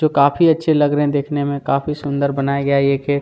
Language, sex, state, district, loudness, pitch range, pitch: Hindi, male, Chhattisgarh, Kabirdham, -17 LUFS, 140-145 Hz, 145 Hz